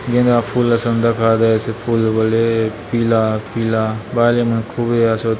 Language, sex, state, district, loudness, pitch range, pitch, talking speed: Chhattisgarhi, male, Chhattisgarh, Bastar, -16 LUFS, 110-120 Hz, 115 Hz, 145 wpm